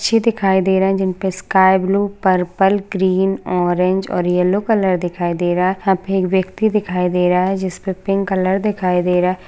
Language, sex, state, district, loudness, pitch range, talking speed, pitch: Hindi, female, Maharashtra, Sindhudurg, -17 LUFS, 180-195 Hz, 185 wpm, 190 Hz